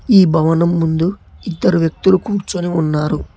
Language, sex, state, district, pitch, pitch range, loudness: Telugu, male, Telangana, Hyderabad, 170 Hz, 160-190 Hz, -15 LUFS